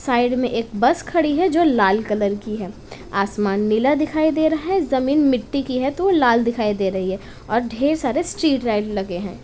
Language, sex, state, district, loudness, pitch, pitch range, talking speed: Hindi, female, Uttar Pradesh, Etah, -20 LUFS, 245 Hz, 210-300 Hz, 225 wpm